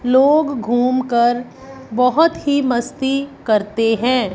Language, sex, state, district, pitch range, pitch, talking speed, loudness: Hindi, female, Punjab, Fazilka, 240-275 Hz, 250 Hz, 110 wpm, -17 LUFS